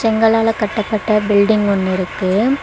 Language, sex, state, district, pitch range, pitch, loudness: Tamil, female, Tamil Nadu, Kanyakumari, 200-225 Hz, 215 Hz, -15 LUFS